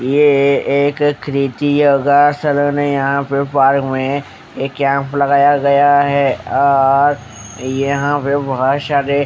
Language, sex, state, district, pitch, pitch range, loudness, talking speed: Hindi, male, Haryana, Charkhi Dadri, 140 Hz, 135-145 Hz, -14 LUFS, 130 wpm